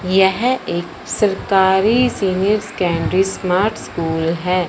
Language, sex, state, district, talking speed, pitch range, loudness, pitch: Hindi, male, Punjab, Fazilka, 100 wpm, 180-205 Hz, -17 LUFS, 190 Hz